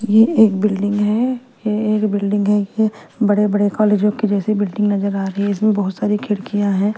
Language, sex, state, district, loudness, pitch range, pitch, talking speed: Hindi, female, Bihar, West Champaran, -17 LUFS, 205-215 Hz, 210 Hz, 200 wpm